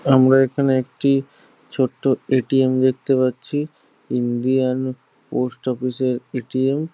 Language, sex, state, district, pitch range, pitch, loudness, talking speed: Bengali, male, West Bengal, Jhargram, 130-135 Hz, 130 Hz, -20 LUFS, 120 wpm